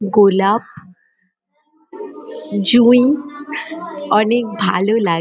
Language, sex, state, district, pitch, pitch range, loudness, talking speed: Bengali, female, West Bengal, Kolkata, 235 Hz, 200-300 Hz, -15 LUFS, 55 wpm